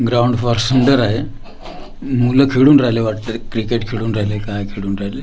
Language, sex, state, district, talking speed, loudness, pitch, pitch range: Marathi, male, Maharashtra, Gondia, 160 wpm, -16 LUFS, 115 Hz, 110-125 Hz